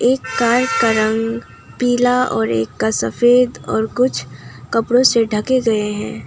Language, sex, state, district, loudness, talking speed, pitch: Hindi, female, West Bengal, Alipurduar, -16 LUFS, 155 wpm, 225 Hz